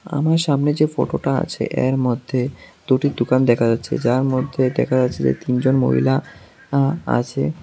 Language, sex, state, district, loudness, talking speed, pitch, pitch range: Bengali, male, Tripura, South Tripura, -19 LUFS, 165 wpm, 130 Hz, 120-140 Hz